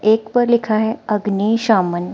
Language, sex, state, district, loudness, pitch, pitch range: Hindi, female, Himachal Pradesh, Shimla, -17 LUFS, 220 Hz, 205-225 Hz